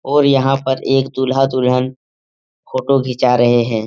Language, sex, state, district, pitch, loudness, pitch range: Hindi, male, Bihar, Jamui, 130 Hz, -15 LUFS, 120-135 Hz